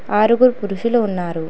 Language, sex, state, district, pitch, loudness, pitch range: Telugu, female, Telangana, Hyderabad, 215 Hz, -17 LUFS, 185-235 Hz